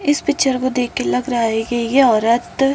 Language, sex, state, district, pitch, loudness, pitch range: Hindi, female, Maharashtra, Nagpur, 250 Hz, -17 LUFS, 230-270 Hz